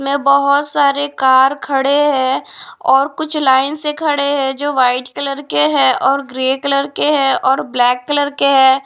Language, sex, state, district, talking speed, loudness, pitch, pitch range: Hindi, female, Punjab, Pathankot, 185 wpm, -14 LUFS, 275 Hz, 265-285 Hz